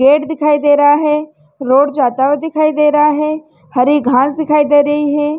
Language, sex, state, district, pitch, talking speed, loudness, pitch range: Hindi, female, Chhattisgarh, Rajnandgaon, 295 Hz, 200 wpm, -12 LUFS, 280-300 Hz